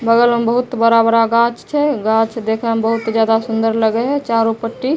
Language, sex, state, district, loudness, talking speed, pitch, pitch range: Maithili, female, Bihar, Begusarai, -15 LUFS, 205 wpm, 230 Hz, 225-235 Hz